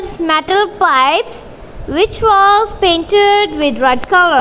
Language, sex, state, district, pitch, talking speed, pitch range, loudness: English, female, Punjab, Kapurthala, 365 Hz, 110 wpm, 290-405 Hz, -11 LUFS